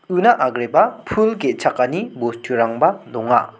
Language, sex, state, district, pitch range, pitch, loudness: Garo, male, Meghalaya, South Garo Hills, 120-190 Hz, 130 Hz, -18 LUFS